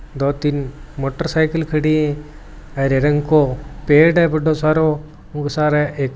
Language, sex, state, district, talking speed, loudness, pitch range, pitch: Marwari, male, Rajasthan, Churu, 145 wpm, -17 LUFS, 145-155 Hz, 150 Hz